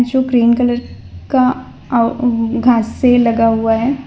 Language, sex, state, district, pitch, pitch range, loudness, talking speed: Hindi, female, Gujarat, Valsad, 240 Hz, 230-250 Hz, -14 LUFS, 150 wpm